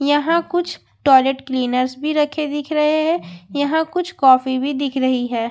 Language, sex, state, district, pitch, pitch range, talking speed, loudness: Hindi, female, Bihar, Katihar, 285 Hz, 260-310 Hz, 175 wpm, -18 LUFS